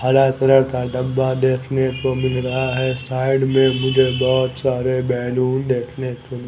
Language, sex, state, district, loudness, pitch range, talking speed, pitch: Hindi, male, Chhattisgarh, Raipur, -19 LUFS, 125-130 Hz, 155 wpm, 130 Hz